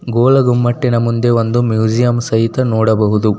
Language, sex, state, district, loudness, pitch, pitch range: Kannada, male, Karnataka, Bijapur, -13 LUFS, 115 Hz, 110-120 Hz